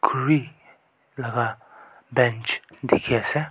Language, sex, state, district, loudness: Nagamese, male, Nagaland, Kohima, -24 LUFS